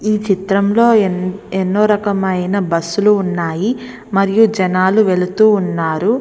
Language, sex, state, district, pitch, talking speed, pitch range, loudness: Telugu, female, Andhra Pradesh, Visakhapatnam, 195 Hz, 105 wpm, 185-210 Hz, -15 LUFS